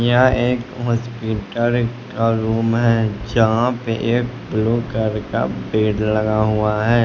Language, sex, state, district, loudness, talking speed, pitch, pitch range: Hindi, male, Bihar, West Champaran, -19 LUFS, 135 wpm, 115 Hz, 110-120 Hz